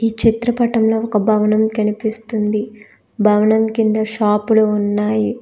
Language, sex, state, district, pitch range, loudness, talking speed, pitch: Telugu, female, Telangana, Hyderabad, 210-225 Hz, -16 LUFS, 100 wpm, 215 Hz